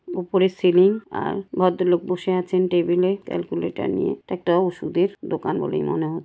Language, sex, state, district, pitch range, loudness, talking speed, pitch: Bengali, female, West Bengal, Paschim Medinipur, 175-190 Hz, -22 LUFS, 155 wpm, 185 Hz